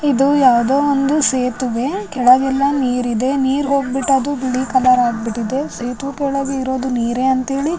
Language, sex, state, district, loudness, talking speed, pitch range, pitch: Kannada, female, Karnataka, Raichur, -16 LUFS, 140 wpm, 250-275 Hz, 265 Hz